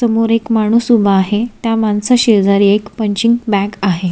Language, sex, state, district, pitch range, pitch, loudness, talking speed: Marathi, female, Maharashtra, Solapur, 200-230 Hz, 215 Hz, -13 LUFS, 175 wpm